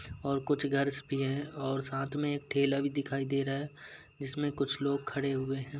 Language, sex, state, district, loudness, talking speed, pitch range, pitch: Hindi, male, Uttar Pradesh, Jalaun, -33 LUFS, 215 wpm, 135-145 Hz, 140 Hz